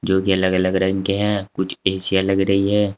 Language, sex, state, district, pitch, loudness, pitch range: Hindi, male, Uttar Pradesh, Saharanpur, 95 Hz, -19 LUFS, 95-100 Hz